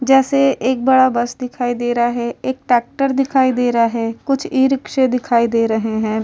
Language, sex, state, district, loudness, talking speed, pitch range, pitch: Hindi, female, Uttar Pradesh, Hamirpur, -16 LUFS, 190 wpm, 235-265 Hz, 250 Hz